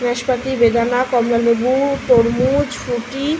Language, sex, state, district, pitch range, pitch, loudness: Bengali, female, West Bengal, Malda, 235-265 Hz, 245 Hz, -16 LUFS